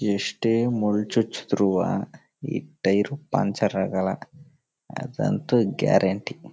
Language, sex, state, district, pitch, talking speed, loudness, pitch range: Kannada, male, Karnataka, Chamarajanagar, 105 Hz, 90 wpm, -24 LUFS, 100-120 Hz